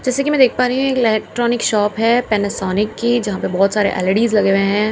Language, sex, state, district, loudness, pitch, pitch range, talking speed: Hindi, female, Bihar, Katihar, -16 LUFS, 220 Hz, 205-240 Hz, 255 wpm